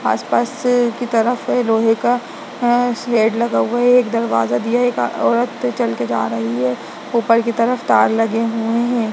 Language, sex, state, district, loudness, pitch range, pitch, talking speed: Hindi, female, Bihar, Lakhisarai, -17 LUFS, 220-240 Hz, 230 Hz, 175 wpm